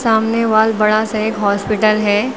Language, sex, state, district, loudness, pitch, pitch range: Hindi, female, Uttar Pradesh, Lucknow, -15 LUFS, 215 Hz, 215-220 Hz